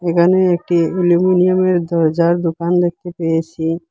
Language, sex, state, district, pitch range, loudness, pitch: Bengali, male, Assam, Hailakandi, 165-180 Hz, -15 LUFS, 170 Hz